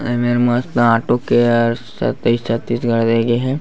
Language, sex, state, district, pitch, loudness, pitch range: Chhattisgarhi, male, Chhattisgarh, Bastar, 120 Hz, -16 LUFS, 115-120 Hz